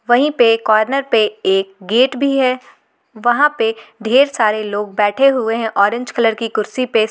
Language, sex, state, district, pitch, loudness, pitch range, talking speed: Hindi, female, Jharkhand, Garhwa, 230 Hz, -15 LUFS, 215-255 Hz, 175 wpm